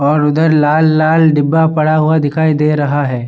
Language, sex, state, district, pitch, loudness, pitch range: Hindi, male, Bihar, Sitamarhi, 155 Hz, -12 LUFS, 145-160 Hz